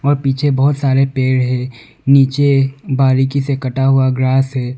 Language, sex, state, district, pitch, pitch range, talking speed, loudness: Hindi, male, Arunachal Pradesh, Longding, 135 Hz, 130-140 Hz, 165 wpm, -14 LUFS